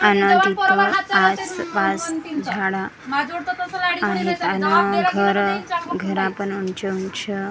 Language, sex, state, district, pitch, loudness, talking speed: Marathi, female, Maharashtra, Gondia, 200 Hz, -20 LUFS, 95 wpm